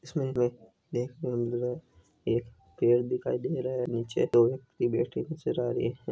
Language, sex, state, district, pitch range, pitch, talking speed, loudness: Hindi, female, Rajasthan, Nagaur, 115-125 Hz, 120 Hz, 185 wpm, -30 LUFS